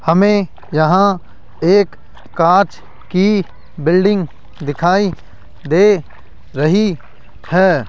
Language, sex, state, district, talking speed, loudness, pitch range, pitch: Hindi, male, Rajasthan, Jaipur, 75 wpm, -15 LUFS, 150-200 Hz, 180 Hz